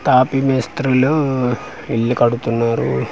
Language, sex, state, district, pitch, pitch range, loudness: Telugu, male, Andhra Pradesh, Manyam, 125 Hz, 115-135 Hz, -17 LUFS